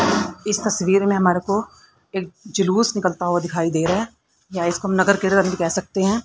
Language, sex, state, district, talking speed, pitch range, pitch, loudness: Hindi, female, Haryana, Rohtak, 200 wpm, 180-200 Hz, 190 Hz, -20 LUFS